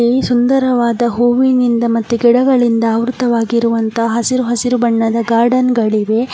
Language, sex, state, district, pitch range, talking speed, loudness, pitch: Kannada, female, Karnataka, Dakshina Kannada, 230-245 Hz, 105 wpm, -13 LUFS, 235 Hz